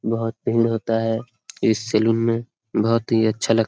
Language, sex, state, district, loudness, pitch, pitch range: Hindi, male, Jharkhand, Sahebganj, -21 LUFS, 115 Hz, 110-115 Hz